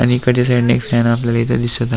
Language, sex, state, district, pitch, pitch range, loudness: Marathi, male, Maharashtra, Aurangabad, 120 Hz, 120-125 Hz, -15 LUFS